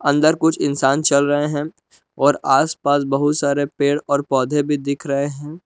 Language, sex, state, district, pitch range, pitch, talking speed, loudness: Hindi, male, Jharkhand, Palamu, 140-150 Hz, 145 Hz, 180 wpm, -18 LUFS